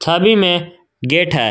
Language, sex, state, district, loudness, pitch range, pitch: Hindi, male, Jharkhand, Garhwa, -14 LUFS, 165-175 Hz, 175 Hz